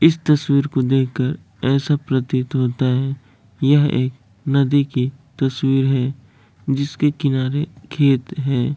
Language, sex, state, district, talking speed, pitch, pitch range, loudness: Hindi, male, Bihar, Kishanganj, 135 wpm, 135 Hz, 130-140 Hz, -19 LUFS